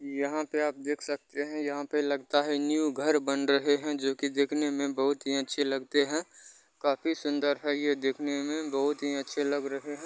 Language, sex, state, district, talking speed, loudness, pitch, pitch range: Maithili, male, Bihar, Muzaffarpur, 210 wpm, -30 LUFS, 145 Hz, 140-150 Hz